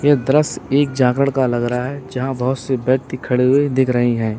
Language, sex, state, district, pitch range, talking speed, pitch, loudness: Hindi, male, Uttar Pradesh, Lalitpur, 125-140 Hz, 230 wpm, 130 Hz, -17 LUFS